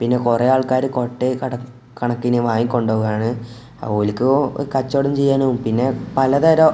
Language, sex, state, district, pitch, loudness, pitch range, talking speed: Malayalam, male, Kerala, Kozhikode, 125 Hz, -18 LUFS, 120-135 Hz, 135 wpm